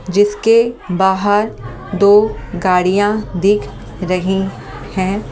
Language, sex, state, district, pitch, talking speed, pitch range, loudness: Hindi, female, Delhi, New Delhi, 200 Hz, 90 wpm, 185-205 Hz, -15 LUFS